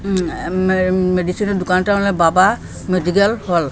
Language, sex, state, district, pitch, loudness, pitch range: Bengali, female, Assam, Hailakandi, 185 Hz, -16 LUFS, 180-200 Hz